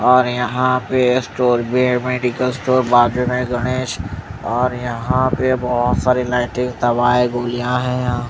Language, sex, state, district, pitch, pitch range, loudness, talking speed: Hindi, male, Odisha, Malkangiri, 125 Hz, 120-125 Hz, -17 LUFS, 150 wpm